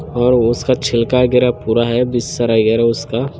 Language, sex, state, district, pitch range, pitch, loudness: Hindi, male, Chhattisgarh, Bilaspur, 115-125 Hz, 120 Hz, -15 LUFS